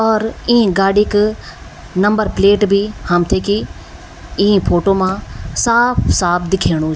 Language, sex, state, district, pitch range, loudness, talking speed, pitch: Garhwali, female, Uttarakhand, Tehri Garhwal, 175-210 Hz, -15 LUFS, 130 wpm, 200 Hz